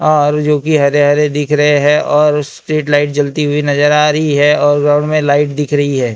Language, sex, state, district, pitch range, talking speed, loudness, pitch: Hindi, male, Maharashtra, Gondia, 145-150 Hz, 235 wpm, -12 LUFS, 145 Hz